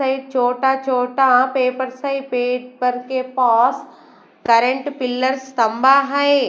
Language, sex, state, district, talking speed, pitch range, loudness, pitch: Hindi, female, Bihar, West Champaran, 85 wpm, 250-265 Hz, -18 LUFS, 255 Hz